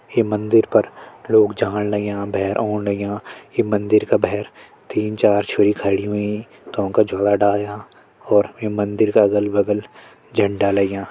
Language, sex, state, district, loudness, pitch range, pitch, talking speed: Hindi, male, Uttarakhand, Tehri Garhwal, -19 LUFS, 100-105 Hz, 105 Hz, 145 wpm